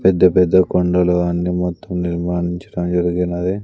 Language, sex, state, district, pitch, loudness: Telugu, male, Andhra Pradesh, Sri Satya Sai, 90 Hz, -17 LUFS